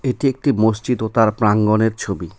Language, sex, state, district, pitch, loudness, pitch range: Bengali, male, West Bengal, Cooch Behar, 110 Hz, -18 LUFS, 105-125 Hz